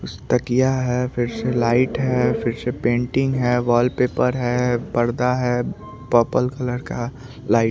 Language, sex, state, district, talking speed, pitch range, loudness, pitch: Hindi, male, Chandigarh, Chandigarh, 150 wpm, 120-125 Hz, -20 LUFS, 125 Hz